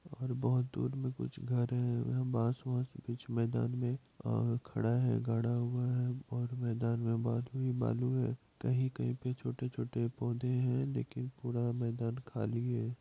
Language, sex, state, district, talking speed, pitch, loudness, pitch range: Hindi, male, Bihar, Madhepura, 165 wpm, 125 Hz, -36 LUFS, 120-125 Hz